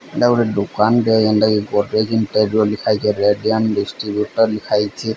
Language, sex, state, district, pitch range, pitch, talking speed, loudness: Odia, male, Odisha, Sambalpur, 105-110 Hz, 105 Hz, 175 wpm, -17 LUFS